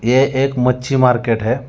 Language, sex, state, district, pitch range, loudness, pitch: Hindi, male, Telangana, Hyderabad, 120-130 Hz, -15 LUFS, 125 Hz